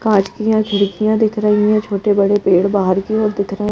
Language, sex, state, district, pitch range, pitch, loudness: Hindi, female, Madhya Pradesh, Bhopal, 200-215 Hz, 210 Hz, -15 LUFS